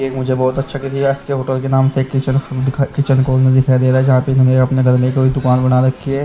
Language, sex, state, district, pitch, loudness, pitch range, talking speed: Hindi, male, Haryana, Charkhi Dadri, 130 Hz, -14 LUFS, 130-135 Hz, 210 wpm